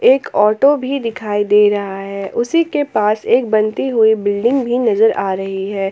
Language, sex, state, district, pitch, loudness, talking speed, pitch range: Hindi, female, Jharkhand, Palamu, 220 Hz, -15 LUFS, 190 wpm, 205-265 Hz